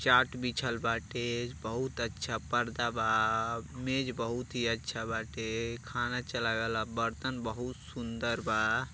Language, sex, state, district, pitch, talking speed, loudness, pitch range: Bhojpuri, male, Uttar Pradesh, Deoria, 115 Hz, 130 wpm, -33 LUFS, 115-125 Hz